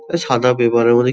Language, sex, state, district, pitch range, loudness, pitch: Bengali, male, West Bengal, Kolkata, 120-125 Hz, -15 LUFS, 125 Hz